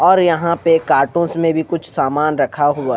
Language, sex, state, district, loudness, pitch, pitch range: Hindi, male, Haryana, Rohtak, -16 LUFS, 160 Hz, 145-170 Hz